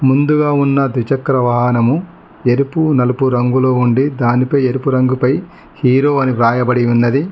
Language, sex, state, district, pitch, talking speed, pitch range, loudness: Telugu, male, Telangana, Mahabubabad, 130 Hz, 130 wpm, 125-140 Hz, -14 LUFS